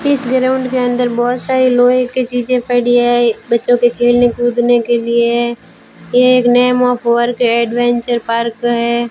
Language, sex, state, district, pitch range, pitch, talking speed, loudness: Hindi, female, Rajasthan, Bikaner, 240-250 Hz, 245 Hz, 165 wpm, -13 LUFS